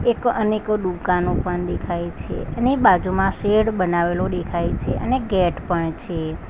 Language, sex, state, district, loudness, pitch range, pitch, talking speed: Gujarati, female, Gujarat, Valsad, -21 LUFS, 175-215 Hz, 185 Hz, 150 wpm